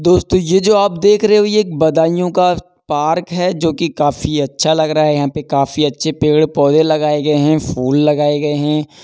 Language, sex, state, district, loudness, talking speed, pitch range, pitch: Hindi, male, Uttar Pradesh, Budaun, -14 LUFS, 205 wpm, 150-180 Hz, 155 Hz